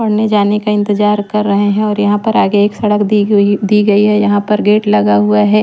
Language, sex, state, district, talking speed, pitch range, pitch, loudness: Hindi, female, Chhattisgarh, Raipur, 255 wpm, 205-210 Hz, 205 Hz, -12 LUFS